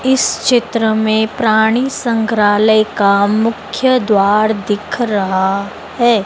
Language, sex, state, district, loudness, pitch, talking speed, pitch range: Hindi, female, Madhya Pradesh, Dhar, -14 LUFS, 220 Hz, 105 wpm, 205-235 Hz